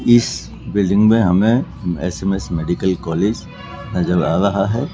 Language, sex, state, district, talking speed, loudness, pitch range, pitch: Hindi, male, Rajasthan, Jaipur, 135 wpm, -17 LUFS, 90-110 Hz, 95 Hz